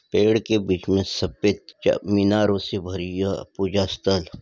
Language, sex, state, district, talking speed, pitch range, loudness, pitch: Hindi, male, Uttar Pradesh, Ghazipur, 175 wpm, 95-105 Hz, -23 LUFS, 95 Hz